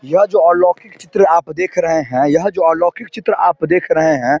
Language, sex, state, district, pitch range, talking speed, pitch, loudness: Hindi, male, Bihar, Samastipur, 165-205 Hz, 220 wpm, 175 Hz, -14 LUFS